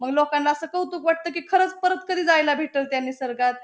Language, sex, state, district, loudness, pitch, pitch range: Marathi, female, Maharashtra, Pune, -23 LUFS, 310 Hz, 275-355 Hz